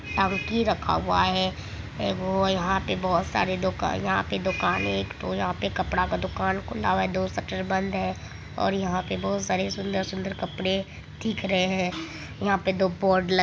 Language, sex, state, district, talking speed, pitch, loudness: Maithili, male, Bihar, Supaul, 205 wpm, 185 Hz, -26 LUFS